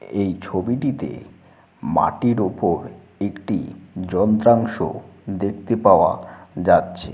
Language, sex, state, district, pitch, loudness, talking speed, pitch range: Bengali, male, West Bengal, Jalpaiguri, 100 Hz, -20 LUFS, 75 wpm, 100-120 Hz